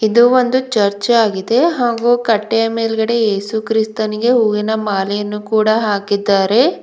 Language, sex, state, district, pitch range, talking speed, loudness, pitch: Kannada, female, Karnataka, Bidar, 210-235 Hz, 105 wpm, -15 LUFS, 220 Hz